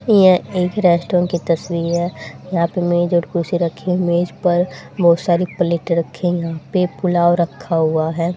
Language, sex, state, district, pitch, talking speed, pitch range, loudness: Hindi, female, Haryana, Charkhi Dadri, 175 Hz, 180 wpm, 170-180 Hz, -17 LUFS